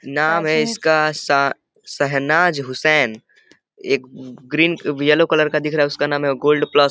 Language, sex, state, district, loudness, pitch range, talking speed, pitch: Hindi, male, Uttar Pradesh, Deoria, -17 LUFS, 140-155 Hz, 185 wpm, 150 Hz